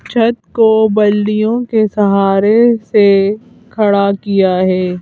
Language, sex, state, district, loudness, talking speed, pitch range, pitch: Hindi, female, Madhya Pradesh, Bhopal, -12 LUFS, 105 wpm, 200-225 Hz, 210 Hz